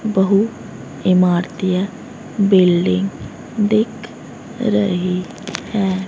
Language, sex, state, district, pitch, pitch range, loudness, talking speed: Hindi, female, Haryana, Rohtak, 195 Hz, 180-215 Hz, -17 LUFS, 60 wpm